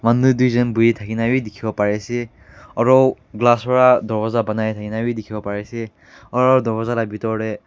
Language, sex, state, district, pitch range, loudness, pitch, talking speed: Nagamese, male, Nagaland, Kohima, 110-120 Hz, -18 LUFS, 115 Hz, 180 wpm